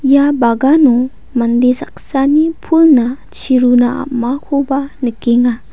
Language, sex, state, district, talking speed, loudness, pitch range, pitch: Garo, female, Meghalaya, West Garo Hills, 95 wpm, -13 LUFS, 245-280 Hz, 260 Hz